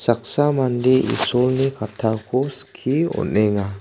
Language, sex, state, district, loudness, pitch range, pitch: Garo, male, Meghalaya, South Garo Hills, -20 LUFS, 110-135 Hz, 125 Hz